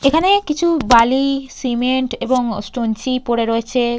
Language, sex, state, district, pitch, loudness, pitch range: Bengali, female, West Bengal, Purulia, 255 Hz, -17 LUFS, 235-275 Hz